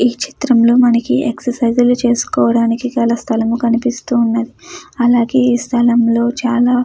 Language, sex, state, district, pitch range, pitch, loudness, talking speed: Telugu, female, Andhra Pradesh, Chittoor, 235-245 Hz, 240 Hz, -14 LUFS, 120 wpm